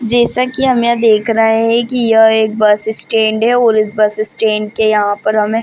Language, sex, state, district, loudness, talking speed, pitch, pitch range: Hindi, female, Bihar, Madhepura, -12 LUFS, 235 wpm, 220 Hz, 215-235 Hz